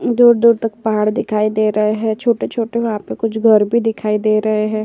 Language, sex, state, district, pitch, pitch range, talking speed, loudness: Hindi, female, Uttar Pradesh, Jyotiba Phule Nagar, 220 Hz, 215-230 Hz, 210 wpm, -16 LUFS